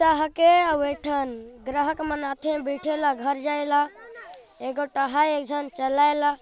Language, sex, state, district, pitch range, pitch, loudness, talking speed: Sadri, male, Chhattisgarh, Jashpur, 280-305 Hz, 290 Hz, -24 LUFS, 170 wpm